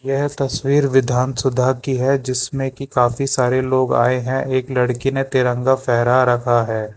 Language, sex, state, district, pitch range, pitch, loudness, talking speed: Hindi, male, Karnataka, Bangalore, 125-135 Hz, 130 Hz, -18 LUFS, 165 wpm